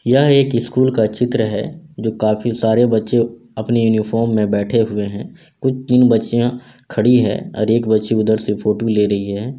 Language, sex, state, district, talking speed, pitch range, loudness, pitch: Hindi, male, Bihar, Sitamarhi, 190 wpm, 110-120 Hz, -16 LUFS, 115 Hz